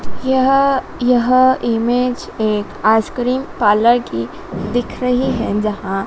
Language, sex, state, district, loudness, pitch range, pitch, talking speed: Hindi, female, Madhya Pradesh, Dhar, -16 LUFS, 210-255 Hz, 245 Hz, 110 wpm